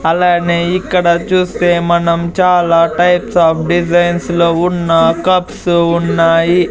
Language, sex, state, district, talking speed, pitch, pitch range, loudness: Telugu, male, Andhra Pradesh, Sri Satya Sai, 105 wpm, 175 Hz, 170-180 Hz, -12 LUFS